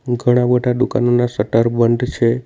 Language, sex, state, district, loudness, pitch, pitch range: Gujarati, male, Gujarat, Navsari, -16 LUFS, 120 Hz, 115-125 Hz